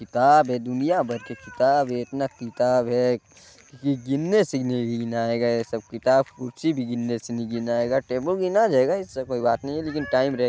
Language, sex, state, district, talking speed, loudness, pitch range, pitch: Hindi, male, Chhattisgarh, Balrampur, 195 wpm, -24 LUFS, 120-135 Hz, 125 Hz